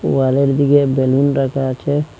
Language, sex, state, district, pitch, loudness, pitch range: Bengali, male, Assam, Hailakandi, 135 Hz, -15 LUFS, 135-140 Hz